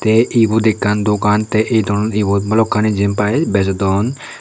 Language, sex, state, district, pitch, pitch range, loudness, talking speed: Chakma, male, Tripura, Unakoti, 105 Hz, 100-110 Hz, -15 LUFS, 110 wpm